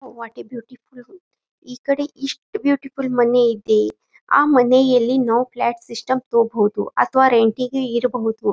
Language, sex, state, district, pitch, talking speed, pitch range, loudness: Kannada, female, Karnataka, Gulbarga, 250 Hz, 125 wpm, 235-265 Hz, -18 LUFS